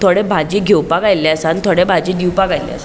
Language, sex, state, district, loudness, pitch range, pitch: Konkani, female, Goa, North and South Goa, -14 LUFS, 165-200 Hz, 185 Hz